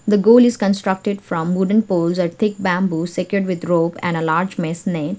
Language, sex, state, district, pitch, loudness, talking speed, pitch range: English, female, Sikkim, Gangtok, 185 Hz, -18 LUFS, 210 wpm, 170-200 Hz